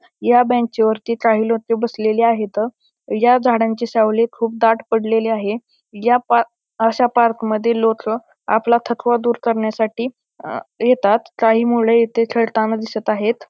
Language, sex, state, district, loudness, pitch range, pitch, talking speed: Marathi, male, Maharashtra, Pune, -17 LUFS, 220-235 Hz, 230 Hz, 140 wpm